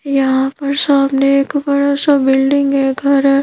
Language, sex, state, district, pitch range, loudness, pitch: Hindi, female, Madhya Pradesh, Bhopal, 275-280 Hz, -13 LUFS, 275 Hz